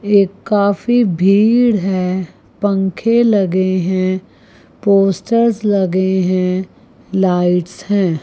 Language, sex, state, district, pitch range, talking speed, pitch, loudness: Hindi, female, Chandigarh, Chandigarh, 185-205 Hz, 85 wpm, 190 Hz, -15 LUFS